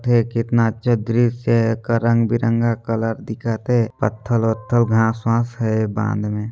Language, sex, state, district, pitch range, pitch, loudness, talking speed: Hindi, male, Chhattisgarh, Sarguja, 110-115 Hz, 115 Hz, -19 LUFS, 165 wpm